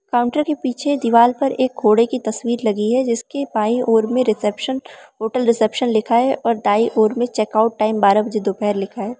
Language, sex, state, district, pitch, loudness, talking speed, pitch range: Hindi, female, Arunachal Pradesh, Lower Dibang Valley, 230 Hz, -18 LUFS, 210 wpm, 215-250 Hz